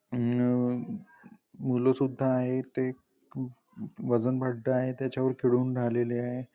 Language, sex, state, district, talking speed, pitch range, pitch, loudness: Marathi, male, Maharashtra, Chandrapur, 110 wpm, 125-130 Hz, 130 Hz, -29 LUFS